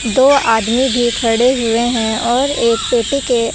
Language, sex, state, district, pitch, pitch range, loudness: Hindi, female, Chandigarh, Chandigarh, 240 Hz, 230-260 Hz, -14 LUFS